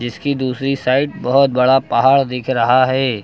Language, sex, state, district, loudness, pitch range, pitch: Hindi, male, Uttar Pradesh, Lucknow, -15 LUFS, 125-135 Hz, 130 Hz